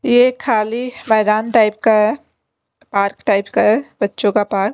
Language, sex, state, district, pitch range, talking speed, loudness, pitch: Hindi, female, Delhi, New Delhi, 210-245 Hz, 205 wpm, -16 LUFS, 220 Hz